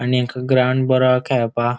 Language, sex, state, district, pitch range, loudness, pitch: Konkani, male, Goa, North and South Goa, 125-130 Hz, -18 LUFS, 125 Hz